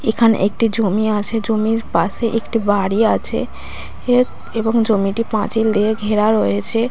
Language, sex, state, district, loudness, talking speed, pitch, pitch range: Bengali, female, West Bengal, Dakshin Dinajpur, -17 LUFS, 140 wpm, 220 Hz, 210-230 Hz